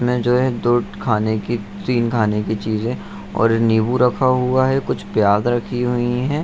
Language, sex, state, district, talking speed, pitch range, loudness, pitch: Hindi, male, Bihar, Saharsa, 185 wpm, 110-125 Hz, -18 LUFS, 120 Hz